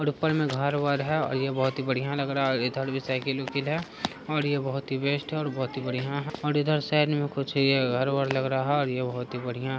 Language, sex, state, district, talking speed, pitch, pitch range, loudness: Hindi, male, Bihar, Araria, 270 wpm, 135 Hz, 130-145 Hz, -27 LUFS